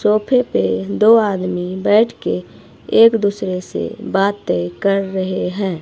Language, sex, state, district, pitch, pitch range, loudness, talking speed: Hindi, female, Himachal Pradesh, Shimla, 195 Hz, 180-210 Hz, -17 LUFS, 135 wpm